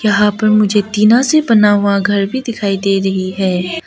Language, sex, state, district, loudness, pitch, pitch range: Hindi, female, Arunachal Pradesh, Lower Dibang Valley, -13 LUFS, 205 Hz, 195-220 Hz